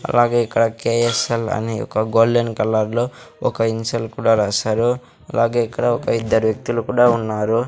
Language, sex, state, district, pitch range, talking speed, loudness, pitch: Telugu, male, Andhra Pradesh, Sri Satya Sai, 110-120 Hz, 150 wpm, -19 LUFS, 115 Hz